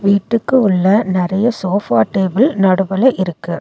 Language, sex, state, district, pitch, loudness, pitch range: Tamil, female, Tamil Nadu, Nilgiris, 195 Hz, -14 LUFS, 185-225 Hz